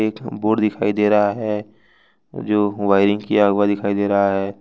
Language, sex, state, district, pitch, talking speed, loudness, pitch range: Hindi, male, Jharkhand, Ranchi, 105 Hz, 180 wpm, -18 LUFS, 100-105 Hz